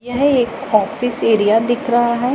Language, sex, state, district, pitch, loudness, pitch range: Hindi, female, Punjab, Pathankot, 240 Hz, -16 LUFS, 225-250 Hz